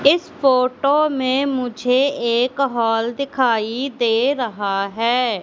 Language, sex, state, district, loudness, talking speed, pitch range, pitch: Hindi, female, Madhya Pradesh, Katni, -19 LUFS, 110 wpm, 230-275 Hz, 250 Hz